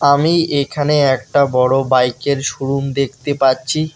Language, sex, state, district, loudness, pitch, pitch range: Bengali, male, West Bengal, Alipurduar, -16 LUFS, 140 Hz, 135-145 Hz